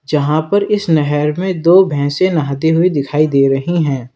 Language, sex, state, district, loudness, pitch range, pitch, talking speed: Hindi, male, Uttar Pradesh, Lalitpur, -14 LUFS, 145-175 Hz, 155 Hz, 190 wpm